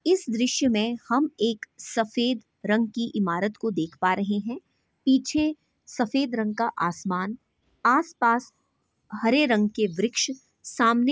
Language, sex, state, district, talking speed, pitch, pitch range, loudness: Hindi, female, Chhattisgarh, Bastar, 135 wpm, 230 Hz, 210-260 Hz, -25 LUFS